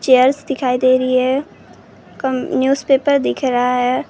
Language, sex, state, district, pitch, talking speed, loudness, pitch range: Hindi, female, Maharashtra, Gondia, 260 Hz, 160 wpm, -16 LUFS, 255-275 Hz